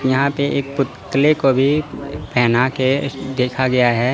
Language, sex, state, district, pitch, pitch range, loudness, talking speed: Hindi, male, Chandigarh, Chandigarh, 135 Hz, 125-140 Hz, -17 LUFS, 160 wpm